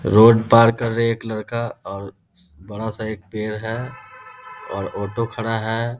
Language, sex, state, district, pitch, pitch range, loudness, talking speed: Hindi, male, Bihar, Darbhanga, 115 Hz, 110-115 Hz, -20 LUFS, 160 wpm